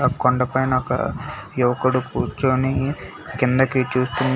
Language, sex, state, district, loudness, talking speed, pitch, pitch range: Telugu, male, Telangana, Hyderabad, -21 LUFS, 85 wpm, 130 Hz, 125-130 Hz